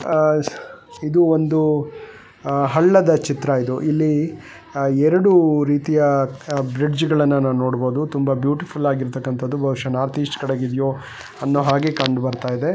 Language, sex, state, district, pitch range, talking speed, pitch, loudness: Kannada, male, Karnataka, Bellary, 135-155 Hz, 110 wpm, 145 Hz, -19 LUFS